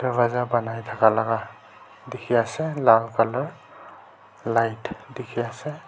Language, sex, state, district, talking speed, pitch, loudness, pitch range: Nagamese, male, Nagaland, Kohima, 100 wpm, 115 Hz, -23 LUFS, 115-125 Hz